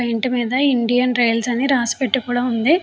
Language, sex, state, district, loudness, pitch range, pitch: Telugu, female, Andhra Pradesh, Chittoor, -18 LUFS, 240-260 Hz, 245 Hz